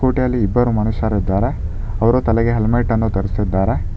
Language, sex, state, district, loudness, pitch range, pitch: Kannada, male, Karnataka, Bangalore, -18 LUFS, 95-120 Hz, 110 Hz